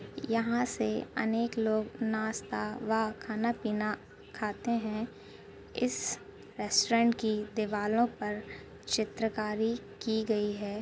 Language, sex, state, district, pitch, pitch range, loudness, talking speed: Hindi, female, Uttar Pradesh, Gorakhpur, 220 Hz, 210-230 Hz, -32 LUFS, 110 wpm